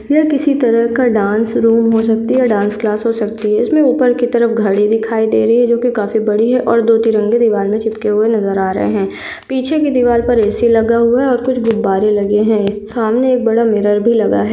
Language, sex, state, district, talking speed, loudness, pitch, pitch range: Hindi, female, Maharashtra, Solapur, 245 wpm, -13 LUFS, 225 Hz, 215-240 Hz